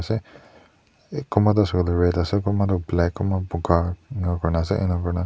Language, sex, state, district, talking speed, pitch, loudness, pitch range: Nagamese, male, Nagaland, Dimapur, 205 wpm, 90 Hz, -22 LUFS, 85-100 Hz